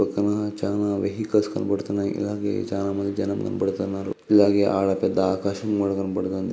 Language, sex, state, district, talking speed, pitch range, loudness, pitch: Telugu, male, Andhra Pradesh, Guntur, 140 wpm, 95-105 Hz, -24 LUFS, 100 Hz